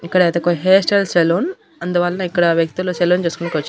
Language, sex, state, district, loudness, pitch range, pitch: Telugu, female, Andhra Pradesh, Annamaya, -16 LUFS, 170-185 Hz, 175 Hz